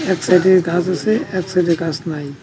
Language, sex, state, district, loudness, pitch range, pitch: Bengali, male, West Bengal, Cooch Behar, -17 LUFS, 165-185 Hz, 180 Hz